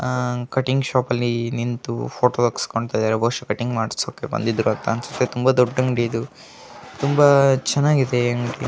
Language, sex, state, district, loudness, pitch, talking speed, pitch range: Kannada, male, Karnataka, Gulbarga, -20 LUFS, 120 Hz, 130 wpm, 115-130 Hz